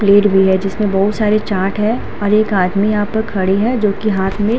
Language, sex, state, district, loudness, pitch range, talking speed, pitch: Hindi, female, Uttar Pradesh, Hamirpur, -15 LUFS, 195-215 Hz, 250 wpm, 205 Hz